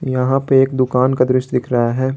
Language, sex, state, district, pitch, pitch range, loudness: Hindi, male, Jharkhand, Garhwa, 130 Hz, 125-135 Hz, -16 LUFS